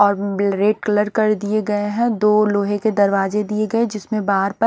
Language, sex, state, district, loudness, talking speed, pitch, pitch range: Hindi, male, Odisha, Nuapada, -18 LUFS, 220 wpm, 210 Hz, 200-215 Hz